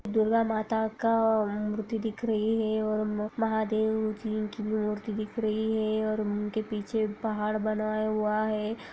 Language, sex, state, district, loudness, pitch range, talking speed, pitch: Hindi, female, Maharashtra, Aurangabad, -29 LUFS, 215-220 Hz, 150 wpm, 215 Hz